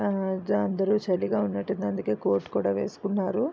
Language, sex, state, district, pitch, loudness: Telugu, female, Andhra Pradesh, Visakhapatnam, 185 Hz, -27 LUFS